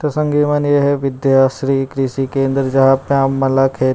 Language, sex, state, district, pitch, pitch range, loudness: Chhattisgarhi, male, Chhattisgarh, Rajnandgaon, 135 Hz, 135-140 Hz, -15 LUFS